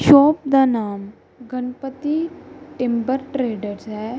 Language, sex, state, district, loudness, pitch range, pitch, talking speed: Punjabi, female, Punjab, Kapurthala, -20 LUFS, 230-285 Hz, 255 Hz, 100 wpm